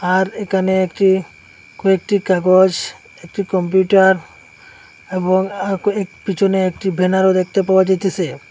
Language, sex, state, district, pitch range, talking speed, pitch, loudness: Bengali, male, Assam, Hailakandi, 185-195 Hz, 115 wpm, 190 Hz, -16 LUFS